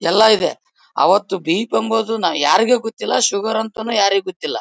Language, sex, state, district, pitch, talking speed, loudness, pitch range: Kannada, male, Karnataka, Bellary, 220 Hz, 145 wpm, -17 LUFS, 195-225 Hz